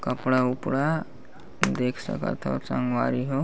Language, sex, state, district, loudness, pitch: Chhattisgarhi, male, Chhattisgarh, Bastar, -26 LUFS, 125 Hz